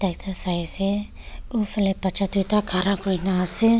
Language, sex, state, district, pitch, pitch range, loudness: Nagamese, female, Nagaland, Kohima, 195 Hz, 190-200 Hz, -20 LUFS